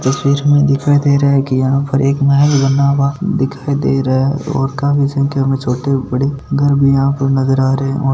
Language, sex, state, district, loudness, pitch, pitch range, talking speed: Marwari, male, Rajasthan, Nagaur, -14 LUFS, 140 Hz, 135-140 Hz, 230 wpm